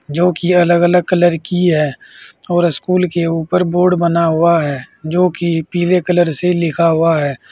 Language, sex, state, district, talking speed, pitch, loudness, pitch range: Hindi, male, Uttar Pradesh, Saharanpur, 185 wpm, 175 Hz, -14 LUFS, 165-180 Hz